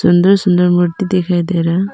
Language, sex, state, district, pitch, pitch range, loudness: Hindi, female, Arunachal Pradesh, Papum Pare, 180 Hz, 175-190 Hz, -13 LUFS